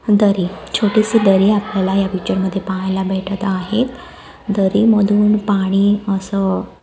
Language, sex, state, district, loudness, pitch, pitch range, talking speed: Marathi, female, Maharashtra, Aurangabad, -16 LUFS, 200 Hz, 190-210 Hz, 115 wpm